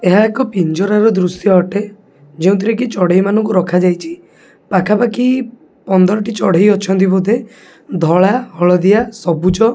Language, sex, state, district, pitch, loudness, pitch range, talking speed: Odia, male, Odisha, Khordha, 200 Hz, -13 LUFS, 185-225 Hz, 125 wpm